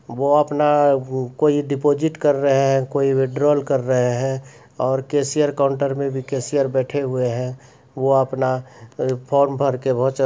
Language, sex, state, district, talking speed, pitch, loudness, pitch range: Hindi, male, Bihar, Supaul, 160 wpm, 135 Hz, -20 LUFS, 130-140 Hz